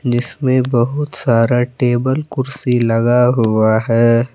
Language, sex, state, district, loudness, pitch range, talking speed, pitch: Hindi, male, Jharkhand, Palamu, -15 LUFS, 115-130 Hz, 110 wpm, 120 Hz